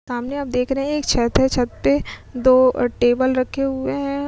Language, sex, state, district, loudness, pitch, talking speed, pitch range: Hindi, female, Uttar Pradesh, Muzaffarnagar, -19 LUFS, 255 Hz, 210 wpm, 245-275 Hz